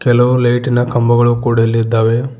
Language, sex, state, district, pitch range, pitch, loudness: Kannada, male, Karnataka, Bidar, 115-120 Hz, 120 Hz, -13 LUFS